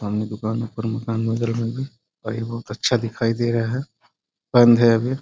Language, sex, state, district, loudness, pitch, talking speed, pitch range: Hindi, male, Bihar, Sitamarhi, -21 LUFS, 115 Hz, 160 wpm, 115-120 Hz